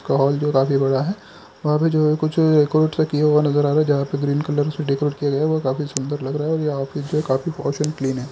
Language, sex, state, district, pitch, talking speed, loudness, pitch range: Hindi, male, Chhattisgarh, Bilaspur, 145 Hz, 300 wpm, -20 LUFS, 140-155 Hz